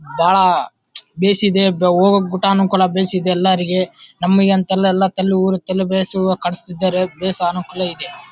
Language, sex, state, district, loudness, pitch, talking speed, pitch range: Kannada, male, Karnataka, Bellary, -16 LUFS, 185 Hz, 85 wpm, 180-190 Hz